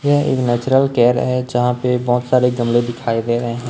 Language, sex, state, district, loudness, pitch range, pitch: Hindi, male, Chhattisgarh, Raipur, -17 LUFS, 120-125 Hz, 125 Hz